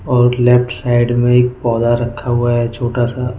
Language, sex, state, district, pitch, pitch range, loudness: Hindi, male, Goa, North and South Goa, 120 Hz, 120-125 Hz, -14 LUFS